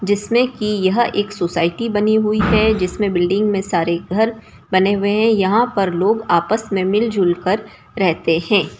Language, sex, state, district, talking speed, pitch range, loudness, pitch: Hindi, female, Bihar, Samastipur, 175 wpm, 185-215 Hz, -17 LUFS, 205 Hz